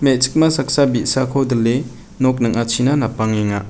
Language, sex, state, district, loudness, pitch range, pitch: Garo, male, Meghalaya, West Garo Hills, -17 LUFS, 115-135 Hz, 130 Hz